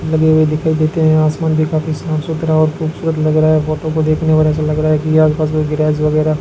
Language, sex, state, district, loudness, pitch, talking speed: Hindi, male, Rajasthan, Bikaner, -14 LUFS, 155 Hz, 280 wpm